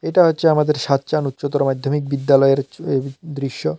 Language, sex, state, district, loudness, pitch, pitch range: Bengali, male, Tripura, South Tripura, -18 LUFS, 140 Hz, 135-150 Hz